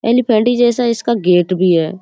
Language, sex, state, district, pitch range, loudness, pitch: Hindi, female, Uttar Pradesh, Budaun, 185-240 Hz, -14 LUFS, 225 Hz